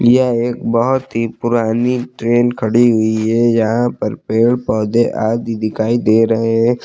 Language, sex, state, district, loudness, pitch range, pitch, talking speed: Hindi, male, Uttar Pradesh, Lucknow, -15 LUFS, 110-120 Hz, 115 Hz, 155 wpm